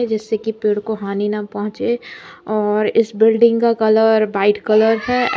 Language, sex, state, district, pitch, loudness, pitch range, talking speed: Hindi, female, Uttar Pradesh, Lalitpur, 220 Hz, -17 LUFS, 210-225 Hz, 165 wpm